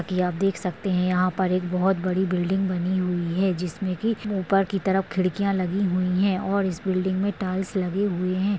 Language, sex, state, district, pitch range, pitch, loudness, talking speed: Hindi, female, Maharashtra, Solapur, 180-195 Hz, 185 Hz, -24 LUFS, 215 wpm